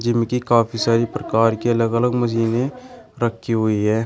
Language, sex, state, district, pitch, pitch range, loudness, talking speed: Hindi, male, Uttar Pradesh, Shamli, 115 Hz, 115-120 Hz, -19 LUFS, 175 wpm